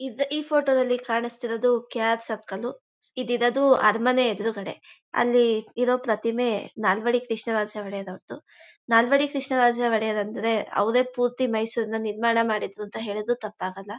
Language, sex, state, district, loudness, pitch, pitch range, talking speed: Kannada, female, Karnataka, Mysore, -24 LUFS, 230 Hz, 220-245 Hz, 150 wpm